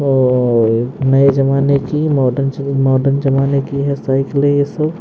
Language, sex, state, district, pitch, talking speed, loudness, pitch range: Hindi, male, Haryana, Jhajjar, 135 Hz, 145 wpm, -14 LUFS, 135-140 Hz